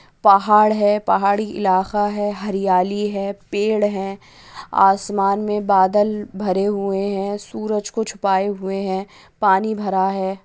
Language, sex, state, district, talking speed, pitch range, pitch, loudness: Hindi, female, Bihar, Gaya, 130 wpm, 195-210 Hz, 200 Hz, -19 LUFS